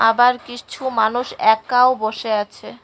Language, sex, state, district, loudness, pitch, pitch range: Bengali, female, West Bengal, Cooch Behar, -18 LUFS, 235 Hz, 220-245 Hz